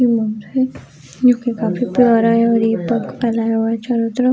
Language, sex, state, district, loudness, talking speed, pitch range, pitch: Hindi, female, Jharkhand, Jamtara, -16 LUFS, 220 wpm, 225-245 Hz, 230 Hz